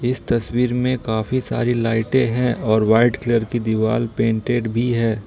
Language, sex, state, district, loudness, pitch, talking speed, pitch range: Hindi, male, Jharkhand, Ranchi, -19 LUFS, 115 Hz, 170 wpm, 110-125 Hz